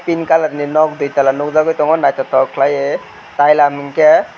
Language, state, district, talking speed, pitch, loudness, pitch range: Kokborok, Tripura, West Tripura, 190 wpm, 145 Hz, -14 LUFS, 140-160 Hz